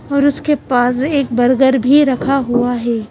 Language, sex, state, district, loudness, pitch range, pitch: Hindi, female, Madhya Pradesh, Bhopal, -14 LUFS, 245-280 Hz, 265 Hz